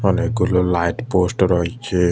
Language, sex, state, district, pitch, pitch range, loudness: Bengali, male, Tripura, West Tripura, 90 Hz, 90-105 Hz, -19 LUFS